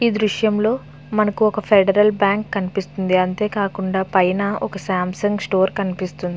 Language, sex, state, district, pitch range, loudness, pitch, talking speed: Telugu, female, Andhra Pradesh, Visakhapatnam, 185-210 Hz, -19 LUFS, 200 Hz, 160 wpm